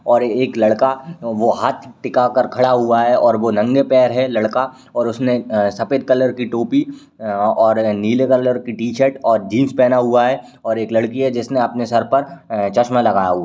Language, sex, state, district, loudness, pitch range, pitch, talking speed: Hindi, male, Uttar Pradesh, Ghazipur, -16 LUFS, 115-130 Hz, 120 Hz, 205 wpm